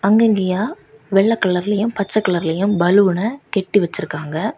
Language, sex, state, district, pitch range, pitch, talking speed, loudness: Tamil, female, Tamil Nadu, Kanyakumari, 180-210 Hz, 200 Hz, 120 wpm, -18 LUFS